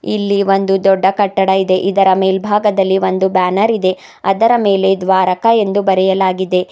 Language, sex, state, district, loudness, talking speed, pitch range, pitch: Kannada, female, Karnataka, Bidar, -13 LUFS, 135 wpm, 190-200 Hz, 195 Hz